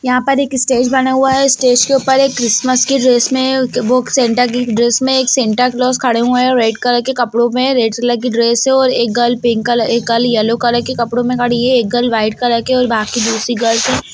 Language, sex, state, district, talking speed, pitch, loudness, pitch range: Hindi, female, Bihar, Gaya, 260 wpm, 245 Hz, -13 LUFS, 235-255 Hz